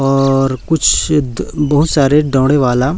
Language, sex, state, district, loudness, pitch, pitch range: Hindi, male, Chhattisgarh, Raipur, -13 LUFS, 135 Hz, 135-150 Hz